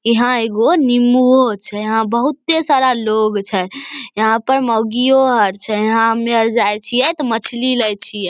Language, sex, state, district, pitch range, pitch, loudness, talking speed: Maithili, female, Bihar, Samastipur, 215-255 Hz, 230 Hz, -15 LUFS, 165 wpm